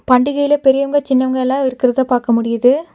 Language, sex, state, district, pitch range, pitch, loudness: Tamil, female, Tamil Nadu, Nilgiris, 250-275 Hz, 260 Hz, -15 LUFS